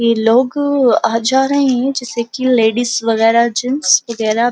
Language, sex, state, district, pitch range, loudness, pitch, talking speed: Hindi, female, Uttar Pradesh, Muzaffarnagar, 230-260 Hz, -14 LUFS, 240 Hz, 170 wpm